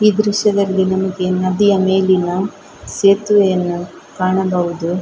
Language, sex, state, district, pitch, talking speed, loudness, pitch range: Kannada, female, Karnataka, Dakshina Kannada, 190 Hz, 95 wpm, -15 LUFS, 185-200 Hz